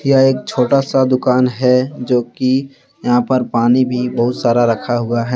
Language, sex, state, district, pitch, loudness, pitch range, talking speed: Hindi, male, Jharkhand, Deoghar, 125 Hz, -15 LUFS, 120-130 Hz, 190 wpm